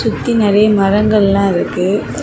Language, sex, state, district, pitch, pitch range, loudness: Tamil, female, Tamil Nadu, Kanyakumari, 210 Hz, 200-215 Hz, -13 LUFS